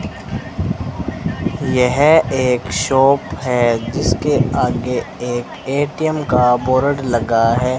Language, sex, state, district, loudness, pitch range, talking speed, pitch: Hindi, male, Rajasthan, Bikaner, -17 LUFS, 120-140 Hz, 90 wpm, 125 Hz